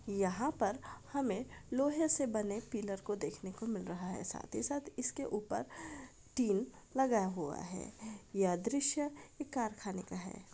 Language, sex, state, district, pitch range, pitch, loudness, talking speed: Hindi, female, Bihar, Araria, 195-270 Hz, 215 Hz, -38 LUFS, 160 wpm